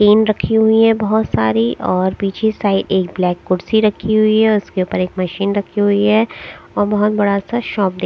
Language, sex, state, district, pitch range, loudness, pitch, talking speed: Hindi, female, Odisha, Sambalpur, 185-215 Hz, -16 LUFS, 205 Hz, 215 wpm